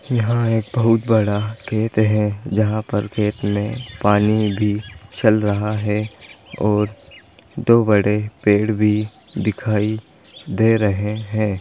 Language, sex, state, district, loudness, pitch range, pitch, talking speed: Hindi, male, Bihar, Bhagalpur, -19 LUFS, 105-110 Hz, 105 Hz, 125 wpm